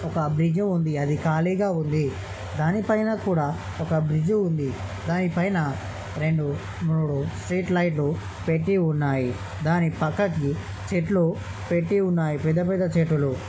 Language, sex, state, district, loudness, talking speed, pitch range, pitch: Telugu, male, Andhra Pradesh, Chittoor, -25 LUFS, 120 wpm, 140-175 Hz, 160 Hz